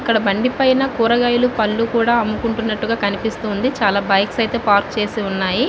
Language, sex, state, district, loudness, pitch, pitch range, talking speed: Telugu, female, Andhra Pradesh, Visakhapatnam, -17 LUFS, 225 Hz, 205-235 Hz, 150 wpm